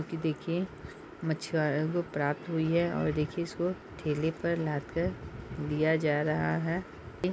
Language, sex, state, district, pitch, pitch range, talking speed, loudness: Hindi, female, Bihar, Saharsa, 160 Hz, 150-170 Hz, 165 wpm, -31 LUFS